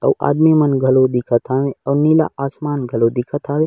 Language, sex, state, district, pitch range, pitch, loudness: Chhattisgarhi, male, Chhattisgarh, Raigarh, 130-150 Hz, 140 Hz, -16 LUFS